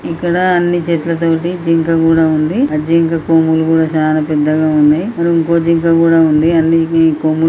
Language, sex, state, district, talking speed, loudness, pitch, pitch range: Telugu, male, Karnataka, Dharwad, 160 wpm, -12 LUFS, 165 Hz, 155-165 Hz